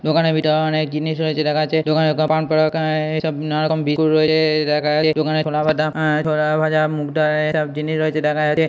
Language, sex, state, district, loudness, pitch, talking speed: Bengali, male, West Bengal, Purulia, -18 LUFS, 155 Hz, 175 wpm